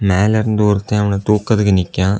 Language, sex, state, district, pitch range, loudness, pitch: Tamil, male, Tamil Nadu, Kanyakumari, 100-105 Hz, -15 LUFS, 105 Hz